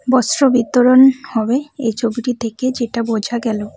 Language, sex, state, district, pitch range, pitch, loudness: Bengali, female, West Bengal, Cooch Behar, 230-255 Hz, 240 Hz, -16 LUFS